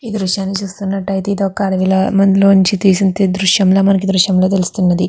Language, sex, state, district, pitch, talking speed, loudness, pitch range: Telugu, female, Andhra Pradesh, Guntur, 195 Hz, 175 wpm, -13 LUFS, 190-195 Hz